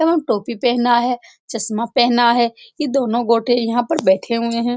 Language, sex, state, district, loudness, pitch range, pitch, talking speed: Hindi, female, Bihar, Saran, -17 LUFS, 230-245 Hz, 240 Hz, 190 wpm